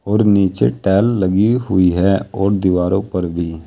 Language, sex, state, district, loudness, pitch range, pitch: Hindi, male, Uttar Pradesh, Saharanpur, -16 LUFS, 90-100 Hz, 95 Hz